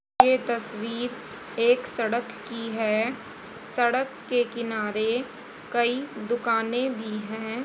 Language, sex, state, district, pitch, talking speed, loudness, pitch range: Hindi, female, Haryana, Jhajjar, 235 Hz, 100 wpm, -26 LUFS, 225-250 Hz